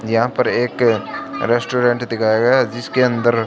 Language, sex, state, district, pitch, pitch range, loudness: Hindi, male, Haryana, Charkhi Dadri, 120 Hz, 115-125 Hz, -17 LUFS